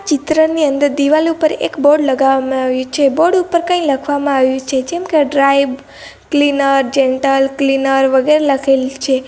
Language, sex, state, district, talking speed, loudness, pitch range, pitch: Gujarati, female, Gujarat, Valsad, 155 wpm, -13 LUFS, 270-305 Hz, 275 Hz